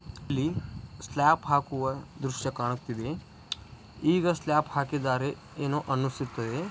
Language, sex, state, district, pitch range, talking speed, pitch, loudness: Kannada, male, Karnataka, Dharwad, 130-150 Hz, 90 wpm, 140 Hz, -30 LUFS